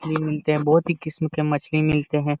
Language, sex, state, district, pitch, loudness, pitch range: Hindi, male, Jharkhand, Jamtara, 155 Hz, -22 LUFS, 150-155 Hz